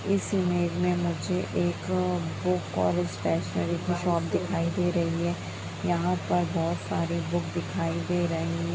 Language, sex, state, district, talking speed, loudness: Hindi, female, Bihar, Jamui, 150 wpm, -28 LUFS